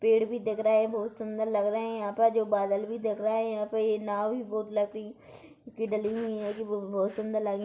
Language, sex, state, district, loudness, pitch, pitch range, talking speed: Hindi, female, Chhattisgarh, Kabirdham, -30 LUFS, 215 Hz, 210-225 Hz, 260 wpm